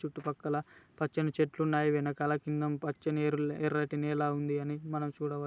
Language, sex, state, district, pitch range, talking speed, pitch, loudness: Telugu, male, Telangana, Nalgonda, 145-150 Hz, 155 wpm, 150 Hz, -33 LUFS